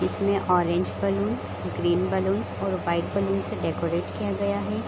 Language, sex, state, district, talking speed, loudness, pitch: Hindi, female, Chhattisgarh, Raigarh, 170 wpm, -26 LUFS, 175 Hz